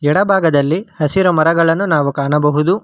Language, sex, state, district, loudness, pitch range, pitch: Kannada, male, Karnataka, Bangalore, -14 LUFS, 150-185 Hz, 160 Hz